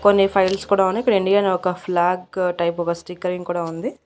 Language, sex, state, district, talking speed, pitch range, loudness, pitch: Telugu, female, Andhra Pradesh, Annamaya, 190 wpm, 175-195 Hz, -20 LUFS, 180 Hz